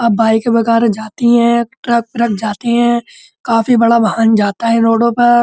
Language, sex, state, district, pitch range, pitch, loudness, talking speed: Hindi, male, Uttar Pradesh, Muzaffarnagar, 225-235 Hz, 230 Hz, -13 LUFS, 175 wpm